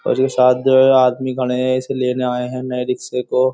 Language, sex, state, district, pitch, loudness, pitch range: Hindi, male, Uttar Pradesh, Jyotiba Phule Nagar, 125 Hz, -17 LUFS, 125-130 Hz